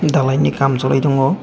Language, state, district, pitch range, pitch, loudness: Kokborok, Tripura, Dhalai, 130-140 Hz, 135 Hz, -16 LUFS